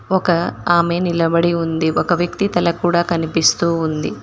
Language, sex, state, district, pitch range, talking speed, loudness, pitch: Telugu, female, Telangana, Mahabubabad, 165-175 Hz, 140 wpm, -17 LUFS, 170 Hz